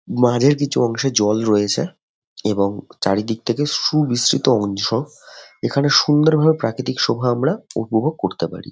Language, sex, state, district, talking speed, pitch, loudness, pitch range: Bengali, male, West Bengal, Jhargram, 135 wpm, 125 Hz, -18 LUFS, 110-145 Hz